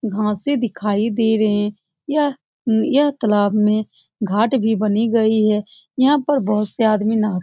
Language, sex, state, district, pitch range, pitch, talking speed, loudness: Hindi, female, Bihar, Saran, 210-240 Hz, 220 Hz, 180 wpm, -18 LUFS